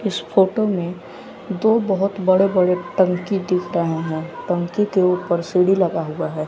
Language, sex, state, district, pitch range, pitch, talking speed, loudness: Hindi, male, Bihar, West Champaran, 170-195 Hz, 180 Hz, 165 wpm, -19 LUFS